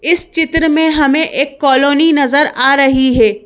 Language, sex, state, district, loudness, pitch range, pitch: Hindi, female, Madhya Pradesh, Bhopal, -11 LUFS, 270-315 Hz, 285 Hz